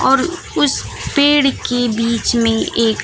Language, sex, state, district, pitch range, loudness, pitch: Hindi, female, Bihar, Kaimur, 230-280 Hz, -16 LUFS, 240 Hz